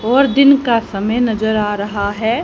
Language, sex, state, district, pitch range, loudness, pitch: Hindi, female, Haryana, Jhajjar, 210-245 Hz, -15 LUFS, 225 Hz